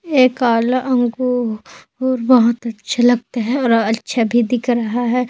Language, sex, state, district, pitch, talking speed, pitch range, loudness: Hindi, female, Chhattisgarh, Kabirdham, 245 Hz, 170 wpm, 230-255 Hz, -16 LUFS